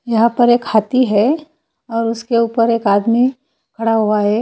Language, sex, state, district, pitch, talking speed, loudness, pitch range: Hindi, female, Haryana, Charkhi Dadri, 230 Hz, 175 wpm, -15 LUFS, 220-250 Hz